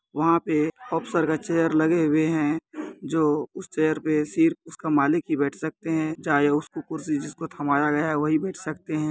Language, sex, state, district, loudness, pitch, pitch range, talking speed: Hindi, male, Bihar, Muzaffarpur, -24 LUFS, 155 Hz, 150-165 Hz, 200 wpm